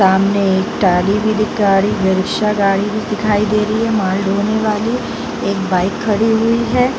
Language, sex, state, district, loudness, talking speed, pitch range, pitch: Hindi, female, Bihar, Jamui, -15 LUFS, 200 wpm, 195-215 Hz, 210 Hz